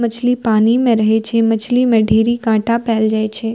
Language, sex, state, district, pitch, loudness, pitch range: Maithili, female, Bihar, Purnia, 225 Hz, -14 LUFS, 220-235 Hz